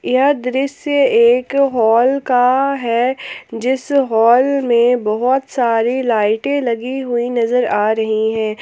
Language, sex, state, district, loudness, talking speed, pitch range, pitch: Hindi, female, Jharkhand, Palamu, -15 LUFS, 125 wpm, 230-265 Hz, 245 Hz